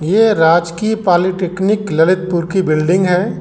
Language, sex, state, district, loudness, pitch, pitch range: Hindi, male, Uttar Pradesh, Lalitpur, -14 LUFS, 180 Hz, 170-195 Hz